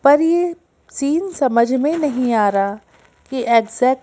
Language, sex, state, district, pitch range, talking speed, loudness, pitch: Hindi, female, Madhya Pradesh, Bhopal, 230-300 Hz, 165 wpm, -17 LUFS, 260 Hz